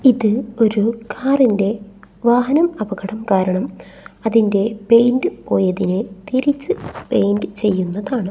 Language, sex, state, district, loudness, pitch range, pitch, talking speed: Malayalam, female, Kerala, Kasaragod, -18 LUFS, 200-250 Hz, 220 Hz, 85 wpm